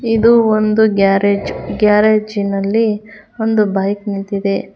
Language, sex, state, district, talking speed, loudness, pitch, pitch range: Kannada, female, Karnataka, Bangalore, 90 wpm, -14 LUFS, 210 Hz, 200-220 Hz